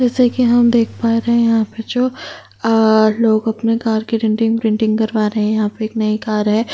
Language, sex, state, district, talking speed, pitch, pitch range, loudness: Hindi, female, Chhattisgarh, Kabirdham, 230 wpm, 225 Hz, 220-230 Hz, -16 LUFS